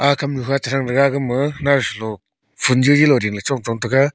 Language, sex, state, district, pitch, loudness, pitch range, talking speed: Wancho, male, Arunachal Pradesh, Longding, 135 Hz, -18 LUFS, 125-140 Hz, 275 wpm